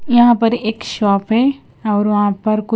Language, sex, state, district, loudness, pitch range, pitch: Hindi, female, Punjab, Kapurthala, -16 LUFS, 205-240 Hz, 220 Hz